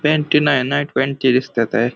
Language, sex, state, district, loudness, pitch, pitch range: Marathi, male, Maharashtra, Pune, -17 LUFS, 135 Hz, 125-145 Hz